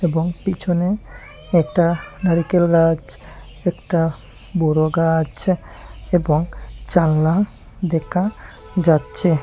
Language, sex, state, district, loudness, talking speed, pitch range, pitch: Bengali, male, Tripura, Unakoti, -19 LUFS, 75 wpm, 160-180 Hz, 170 Hz